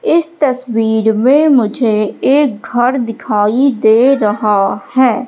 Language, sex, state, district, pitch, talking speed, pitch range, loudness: Hindi, female, Madhya Pradesh, Katni, 240 Hz, 115 wpm, 220-270 Hz, -12 LUFS